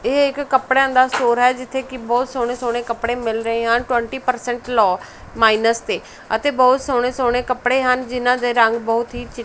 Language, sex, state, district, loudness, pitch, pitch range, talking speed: Punjabi, female, Punjab, Pathankot, -18 LUFS, 245 Hz, 235-255 Hz, 205 wpm